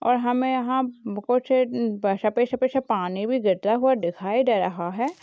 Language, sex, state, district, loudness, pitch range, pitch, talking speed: Hindi, female, Uttar Pradesh, Hamirpur, -23 LUFS, 210-255 Hz, 245 Hz, 195 wpm